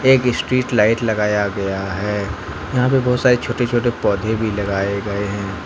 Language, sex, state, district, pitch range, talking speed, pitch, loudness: Hindi, male, Jharkhand, Ranchi, 100-125 Hz, 180 wpm, 105 Hz, -18 LUFS